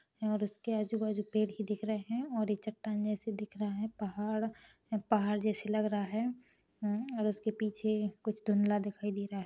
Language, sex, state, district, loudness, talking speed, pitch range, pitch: Hindi, female, Chhattisgarh, Rajnandgaon, -35 LUFS, 190 wpm, 210-220 Hz, 215 Hz